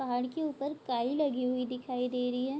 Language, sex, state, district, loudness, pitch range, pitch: Hindi, female, Bihar, Bhagalpur, -33 LUFS, 250-280 Hz, 255 Hz